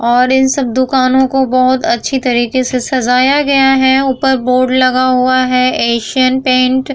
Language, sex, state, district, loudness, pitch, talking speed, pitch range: Hindi, female, Bihar, Vaishali, -11 LUFS, 255 Hz, 175 wpm, 255-265 Hz